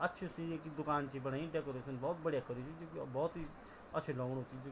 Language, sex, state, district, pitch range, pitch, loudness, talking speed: Garhwali, male, Uttarakhand, Tehri Garhwal, 135-165 Hz, 150 Hz, -42 LUFS, 190 wpm